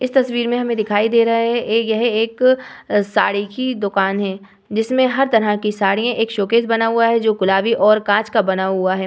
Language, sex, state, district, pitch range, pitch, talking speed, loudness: Hindi, female, Bihar, Vaishali, 205-235 Hz, 220 Hz, 220 wpm, -17 LUFS